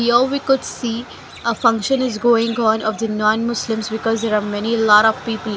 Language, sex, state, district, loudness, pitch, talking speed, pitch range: English, female, Punjab, Fazilka, -18 LUFS, 225 Hz, 215 wpm, 220-235 Hz